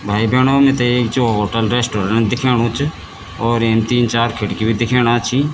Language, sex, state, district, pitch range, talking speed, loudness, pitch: Garhwali, male, Uttarakhand, Tehri Garhwal, 110-125 Hz, 185 wpm, -16 LUFS, 115 Hz